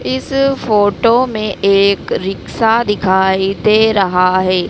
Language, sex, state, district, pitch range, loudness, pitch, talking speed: Hindi, female, Madhya Pradesh, Dhar, 190-225 Hz, -13 LUFS, 205 Hz, 115 wpm